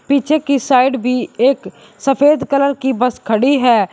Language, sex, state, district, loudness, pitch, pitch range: Hindi, male, Uttar Pradesh, Shamli, -15 LUFS, 265 Hz, 245-275 Hz